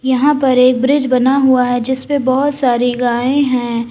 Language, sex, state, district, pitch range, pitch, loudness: Hindi, female, Uttar Pradesh, Lalitpur, 245-275 Hz, 255 Hz, -13 LUFS